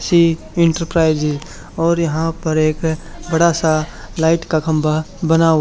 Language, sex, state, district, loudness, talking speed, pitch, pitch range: Hindi, male, Haryana, Charkhi Dadri, -17 LUFS, 130 wpm, 160 Hz, 155-165 Hz